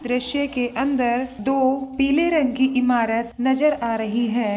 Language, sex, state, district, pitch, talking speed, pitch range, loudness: Hindi, female, Bihar, Begusarai, 255 Hz, 155 wpm, 235-270 Hz, -21 LUFS